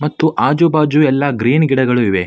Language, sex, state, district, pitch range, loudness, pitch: Kannada, male, Karnataka, Mysore, 125-155 Hz, -13 LUFS, 145 Hz